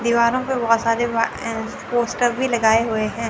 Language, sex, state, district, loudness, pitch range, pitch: Hindi, female, Chandigarh, Chandigarh, -20 LUFS, 230-240 Hz, 230 Hz